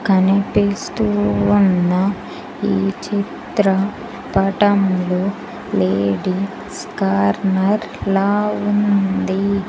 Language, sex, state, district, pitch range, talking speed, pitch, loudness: Telugu, female, Andhra Pradesh, Sri Satya Sai, 180-205 Hz, 50 wpm, 195 Hz, -18 LUFS